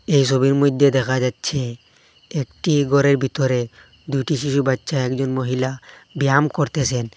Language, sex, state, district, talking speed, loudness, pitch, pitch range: Bengali, male, Assam, Hailakandi, 125 wpm, -20 LUFS, 135 Hz, 130-140 Hz